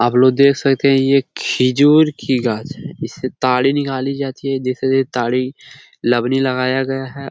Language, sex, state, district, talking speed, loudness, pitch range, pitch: Hindi, male, Bihar, Jamui, 190 wpm, -16 LUFS, 130-140 Hz, 135 Hz